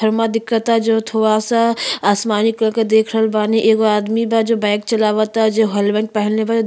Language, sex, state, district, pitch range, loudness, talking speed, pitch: Bhojpuri, female, Uttar Pradesh, Ghazipur, 215-225 Hz, -16 LUFS, 200 wpm, 220 Hz